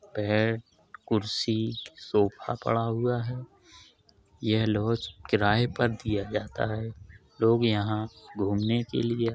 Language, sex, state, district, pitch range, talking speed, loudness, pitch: Hindi, male, Uttar Pradesh, Jalaun, 105-115 Hz, 115 wpm, -28 LUFS, 110 Hz